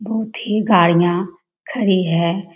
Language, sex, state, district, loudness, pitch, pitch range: Hindi, female, Bihar, Jamui, -17 LUFS, 185 Hz, 175-215 Hz